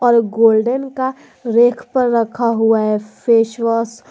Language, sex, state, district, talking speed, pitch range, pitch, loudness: Hindi, female, Jharkhand, Garhwa, 160 wpm, 225-245 Hz, 230 Hz, -16 LUFS